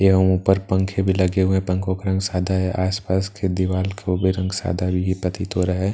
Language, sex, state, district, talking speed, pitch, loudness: Hindi, male, Bihar, Katihar, 245 wpm, 95 Hz, -21 LUFS